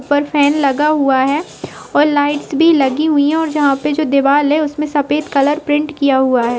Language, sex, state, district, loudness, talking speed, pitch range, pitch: Hindi, female, Jharkhand, Jamtara, -14 LUFS, 220 wpm, 275-300 Hz, 290 Hz